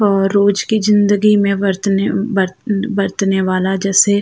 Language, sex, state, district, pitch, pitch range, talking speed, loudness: Hindi, female, Uttar Pradesh, Jalaun, 200 Hz, 195-205 Hz, 155 wpm, -15 LUFS